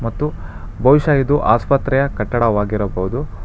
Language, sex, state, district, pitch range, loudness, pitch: Kannada, male, Karnataka, Bangalore, 105-140 Hz, -17 LUFS, 120 Hz